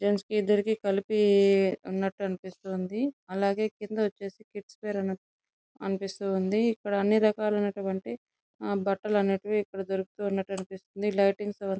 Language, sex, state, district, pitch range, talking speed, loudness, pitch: Telugu, female, Andhra Pradesh, Chittoor, 195-210 Hz, 130 wpm, -29 LUFS, 200 Hz